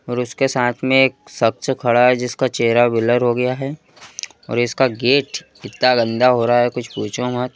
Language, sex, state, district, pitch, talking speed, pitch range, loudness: Hindi, male, Madhya Pradesh, Bhopal, 125 Hz, 200 wpm, 120-130 Hz, -17 LUFS